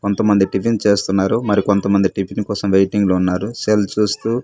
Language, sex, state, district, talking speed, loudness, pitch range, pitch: Telugu, male, Andhra Pradesh, Manyam, 160 wpm, -17 LUFS, 95-105 Hz, 100 Hz